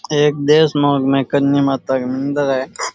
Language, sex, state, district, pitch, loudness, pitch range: Rajasthani, male, Rajasthan, Churu, 140 Hz, -16 LUFS, 135-145 Hz